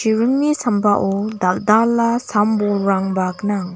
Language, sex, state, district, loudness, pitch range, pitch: Garo, female, Meghalaya, West Garo Hills, -17 LUFS, 195-230 Hz, 205 Hz